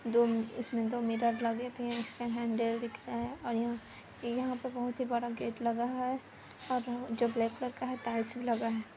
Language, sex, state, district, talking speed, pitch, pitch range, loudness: Hindi, female, Chhattisgarh, Kabirdham, 215 wpm, 235 Hz, 230-245 Hz, -35 LUFS